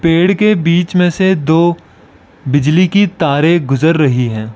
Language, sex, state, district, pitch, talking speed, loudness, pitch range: Hindi, male, Arunachal Pradesh, Lower Dibang Valley, 165 Hz, 160 wpm, -12 LUFS, 145-180 Hz